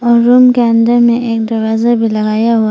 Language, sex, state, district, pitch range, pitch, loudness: Hindi, female, Arunachal Pradesh, Papum Pare, 225-240 Hz, 230 Hz, -10 LUFS